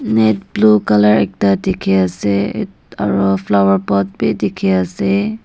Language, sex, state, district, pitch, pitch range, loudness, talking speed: Nagamese, female, Nagaland, Dimapur, 100 Hz, 95-105 Hz, -15 LUFS, 110 wpm